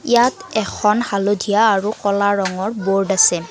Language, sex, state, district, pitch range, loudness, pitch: Assamese, female, Assam, Kamrup Metropolitan, 195-220 Hz, -17 LUFS, 205 Hz